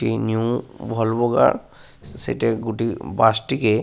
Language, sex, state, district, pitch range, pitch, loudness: Bengali, male, Jharkhand, Sahebganj, 110-120 Hz, 115 Hz, -21 LUFS